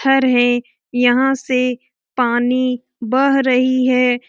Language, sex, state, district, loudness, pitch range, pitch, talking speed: Hindi, female, Bihar, Lakhisarai, -16 LUFS, 245-260 Hz, 255 Hz, 110 wpm